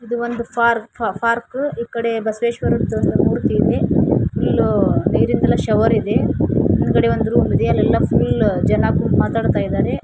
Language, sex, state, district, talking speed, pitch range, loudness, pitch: Kannada, female, Karnataka, Koppal, 135 wpm, 230-235 Hz, -17 LUFS, 235 Hz